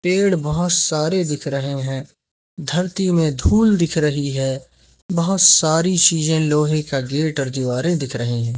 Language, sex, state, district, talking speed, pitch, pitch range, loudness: Hindi, male, Madhya Pradesh, Umaria, 160 wpm, 155 Hz, 140-175 Hz, -18 LUFS